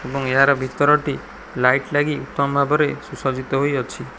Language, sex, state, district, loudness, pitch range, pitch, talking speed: Odia, male, Odisha, Khordha, -19 LUFS, 130-145 Hz, 140 Hz, 145 wpm